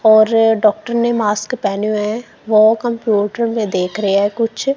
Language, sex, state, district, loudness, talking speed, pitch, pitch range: Hindi, female, Punjab, Kapurthala, -15 LUFS, 175 wpm, 220 Hz, 210-230 Hz